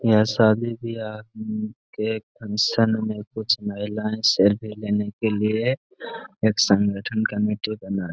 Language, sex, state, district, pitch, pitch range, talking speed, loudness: Hindi, male, Bihar, Gaya, 110 Hz, 105-110 Hz, 125 wpm, -23 LUFS